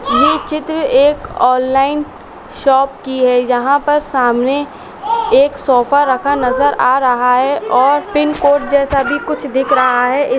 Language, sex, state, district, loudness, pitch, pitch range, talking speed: Hindi, female, Chhattisgarh, Bilaspur, -13 LUFS, 275 Hz, 255-290 Hz, 155 wpm